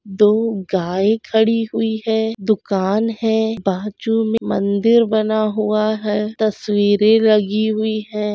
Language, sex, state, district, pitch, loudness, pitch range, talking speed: Hindi, female, Andhra Pradesh, Krishna, 215 Hz, -17 LUFS, 210-220 Hz, 130 wpm